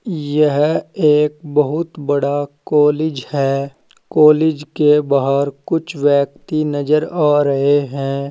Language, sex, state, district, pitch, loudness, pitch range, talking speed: Hindi, male, Uttar Pradesh, Saharanpur, 150 Hz, -16 LUFS, 140-155 Hz, 110 wpm